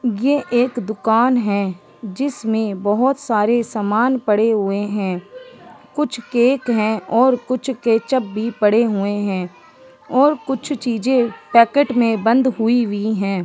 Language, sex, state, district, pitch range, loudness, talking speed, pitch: Hindi, female, Uttarakhand, Uttarkashi, 210-255 Hz, -18 LUFS, 135 wpm, 235 Hz